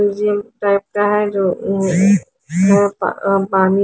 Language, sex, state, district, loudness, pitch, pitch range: Hindi, female, Haryana, Charkhi Dadri, -16 LUFS, 200 Hz, 195-205 Hz